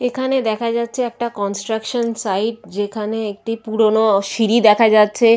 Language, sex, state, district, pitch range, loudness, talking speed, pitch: Bengali, female, West Bengal, Purulia, 210-235 Hz, -18 LUFS, 135 wpm, 220 Hz